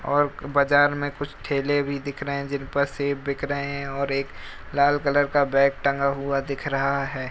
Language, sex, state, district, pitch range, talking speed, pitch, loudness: Hindi, male, Uttar Pradesh, Jalaun, 140-145 Hz, 205 wpm, 140 Hz, -24 LUFS